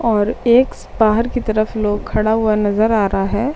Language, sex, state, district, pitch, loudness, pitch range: Hindi, female, Chhattisgarh, Raigarh, 220 Hz, -16 LUFS, 210-230 Hz